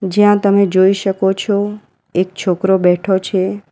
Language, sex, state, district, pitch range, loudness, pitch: Gujarati, female, Gujarat, Valsad, 185-200 Hz, -15 LUFS, 190 Hz